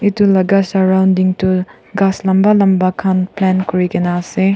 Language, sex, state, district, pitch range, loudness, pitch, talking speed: Nagamese, female, Nagaland, Kohima, 185-195 Hz, -14 LUFS, 190 Hz, 160 wpm